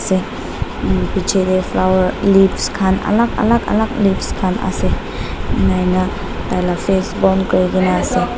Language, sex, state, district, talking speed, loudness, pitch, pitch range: Nagamese, female, Nagaland, Dimapur, 135 wpm, -16 LUFS, 190 Hz, 185-195 Hz